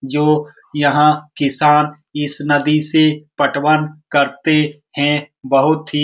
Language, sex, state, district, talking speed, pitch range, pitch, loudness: Hindi, male, Bihar, Supaul, 120 wpm, 145-150 Hz, 150 Hz, -16 LUFS